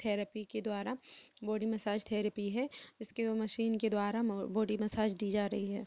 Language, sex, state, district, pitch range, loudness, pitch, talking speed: Hindi, female, Uttar Pradesh, Jalaun, 210-225 Hz, -36 LUFS, 215 Hz, 185 wpm